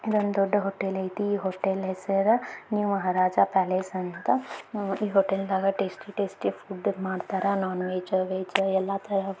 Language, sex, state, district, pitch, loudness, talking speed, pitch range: Kannada, female, Karnataka, Belgaum, 195 Hz, -27 LUFS, 145 wpm, 190-200 Hz